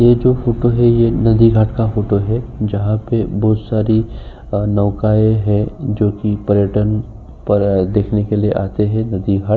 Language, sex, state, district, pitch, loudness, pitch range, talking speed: Hindi, male, Uttar Pradesh, Jyotiba Phule Nagar, 105 Hz, -15 LUFS, 105-115 Hz, 150 wpm